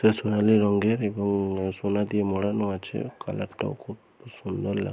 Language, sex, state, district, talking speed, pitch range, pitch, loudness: Bengali, male, West Bengal, Purulia, 160 wpm, 100-105 Hz, 100 Hz, -26 LUFS